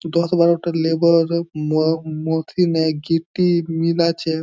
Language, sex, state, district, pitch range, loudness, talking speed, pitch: Bengali, male, West Bengal, Jhargram, 160-170 Hz, -19 LUFS, 120 wpm, 165 Hz